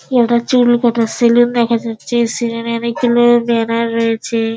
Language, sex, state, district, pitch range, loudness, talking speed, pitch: Bengali, female, West Bengal, Dakshin Dinajpur, 230-240 Hz, -14 LUFS, 145 wpm, 235 Hz